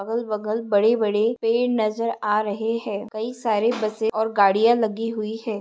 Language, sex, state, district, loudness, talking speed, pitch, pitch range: Hindi, female, Maharashtra, Sindhudurg, -22 LUFS, 180 wpm, 220 Hz, 215-230 Hz